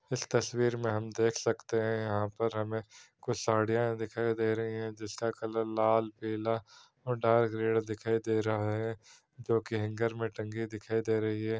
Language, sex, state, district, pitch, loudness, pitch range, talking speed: Hindi, male, Bihar, Saran, 110 Hz, -32 LUFS, 110-115 Hz, 180 wpm